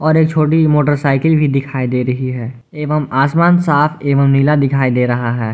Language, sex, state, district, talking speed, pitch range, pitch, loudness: Hindi, male, Jharkhand, Garhwa, 195 wpm, 130-150 Hz, 140 Hz, -14 LUFS